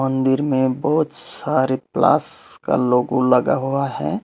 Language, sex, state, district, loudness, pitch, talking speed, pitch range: Hindi, male, Tripura, Unakoti, -17 LUFS, 130 Hz, 140 wpm, 130-140 Hz